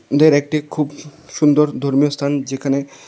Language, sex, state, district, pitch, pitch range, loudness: Bengali, male, Tripura, West Tripura, 145 Hz, 140-150 Hz, -17 LUFS